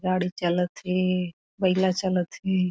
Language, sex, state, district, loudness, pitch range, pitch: Chhattisgarhi, female, Chhattisgarh, Korba, -26 LUFS, 180-185 Hz, 185 Hz